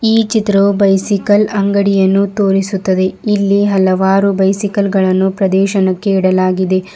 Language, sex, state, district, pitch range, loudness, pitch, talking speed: Kannada, female, Karnataka, Bidar, 190-200 Hz, -12 LUFS, 195 Hz, 95 wpm